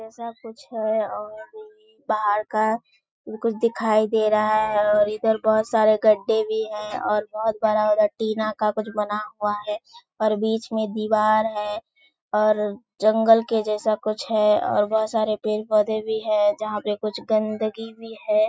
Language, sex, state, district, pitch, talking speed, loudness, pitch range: Hindi, female, Bihar, Kishanganj, 215 Hz, 165 wpm, -22 LUFS, 215-225 Hz